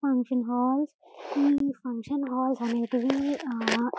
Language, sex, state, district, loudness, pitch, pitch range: Telugu, female, Telangana, Karimnagar, -28 LUFS, 260 Hz, 245-280 Hz